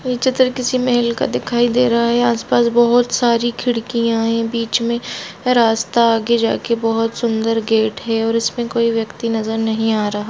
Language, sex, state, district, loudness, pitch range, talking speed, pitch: Hindi, female, Bihar, Bhagalpur, -17 LUFS, 225-240 Hz, 185 wpm, 235 Hz